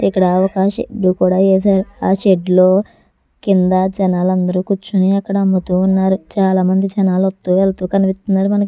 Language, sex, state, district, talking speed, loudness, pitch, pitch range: Telugu, female, Andhra Pradesh, Chittoor, 125 wpm, -15 LUFS, 190 Hz, 185-195 Hz